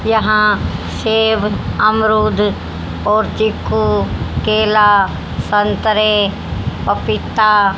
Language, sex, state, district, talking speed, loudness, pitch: Hindi, female, Haryana, Charkhi Dadri, 60 wpm, -15 LUFS, 210 Hz